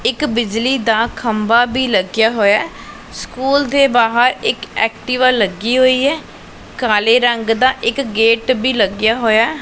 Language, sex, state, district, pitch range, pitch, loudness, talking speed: Punjabi, female, Punjab, Pathankot, 225-255 Hz, 235 Hz, -14 LUFS, 145 wpm